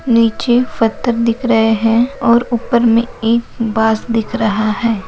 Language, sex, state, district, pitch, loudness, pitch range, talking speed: Hindi, female, Maharashtra, Sindhudurg, 230 Hz, -14 LUFS, 225-240 Hz, 155 wpm